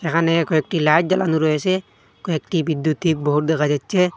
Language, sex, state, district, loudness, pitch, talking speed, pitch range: Bengali, male, Assam, Hailakandi, -19 LUFS, 160 Hz, 145 wpm, 155-175 Hz